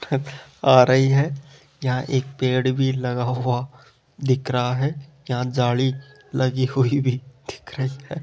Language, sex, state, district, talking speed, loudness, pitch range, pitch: Hindi, male, Rajasthan, Jaipur, 145 wpm, -22 LUFS, 125-140 Hz, 130 Hz